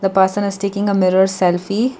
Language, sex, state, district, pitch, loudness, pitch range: English, female, Karnataka, Bangalore, 195 Hz, -17 LUFS, 190-200 Hz